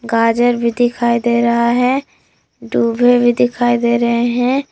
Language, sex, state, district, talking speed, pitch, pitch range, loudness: Hindi, female, Jharkhand, Palamu, 150 wpm, 240 Hz, 235-245 Hz, -14 LUFS